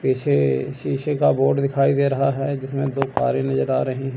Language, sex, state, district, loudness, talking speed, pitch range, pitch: Hindi, male, Chandigarh, Chandigarh, -21 LUFS, 200 wpm, 130-140 Hz, 135 Hz